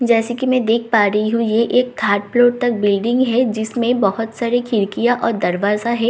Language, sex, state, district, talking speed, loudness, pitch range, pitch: Hindi, female, Bihar, Katihar, 235 wpm, -17 LUFS, 215-245 Hz, 230 Hz